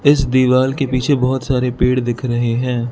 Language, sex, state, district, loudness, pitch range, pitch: Hindi, male, Arunachal Pradesh, Lower Dibang Valley, -16 LUFS, 125-130 Hz, 125 Hz